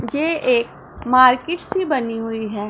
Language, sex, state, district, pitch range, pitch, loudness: Hindi, female, Punjab, Pathankot, 225-350 Hz, 260 Hz, -18 LUFS